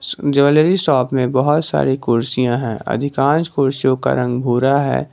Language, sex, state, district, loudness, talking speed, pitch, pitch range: Hindi, male, Jharkhand, Garhwa, -16 LUFS, 150 wpm, 135 Hz, 125-140 Hz